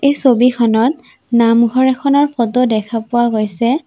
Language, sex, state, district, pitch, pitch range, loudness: Assamese, female, Assam, Sonitpur, 240 Hz, 230-260 Hz, -14 LUFS